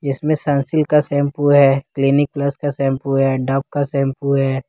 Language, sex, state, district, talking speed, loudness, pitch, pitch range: Hindi, male, Jharkhand, Ranchi, 180 wpm, -17 LUFS, 140 Hz, 135-145 Hz